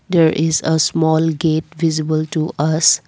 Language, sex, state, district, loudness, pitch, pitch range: English, female, Assam, Kamrup Metropolitan, -16 LUFS, 160 Hz, 155-160 Hz